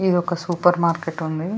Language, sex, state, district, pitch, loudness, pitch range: Telugu, female, Telangana, Nalgonda, 175 Hz, -21 LUFS, 165-175 Hz